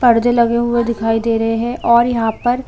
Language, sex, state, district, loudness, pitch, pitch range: Hindi, female, Chhattisgarh, Korba, -15 LUFS, 235 Hz, 230-240 Hz